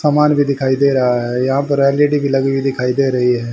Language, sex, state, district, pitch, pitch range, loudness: Hindi, male, Haryana, Rohtak, 135 Hz, 125-140 Hz, -15 LUFS